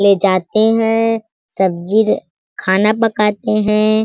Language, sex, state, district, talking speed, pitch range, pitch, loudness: Hindi, female, Chhattisgarh, Sarguja, 105 wpm, 200-220 Hz, 215 Hz, -15 LUFS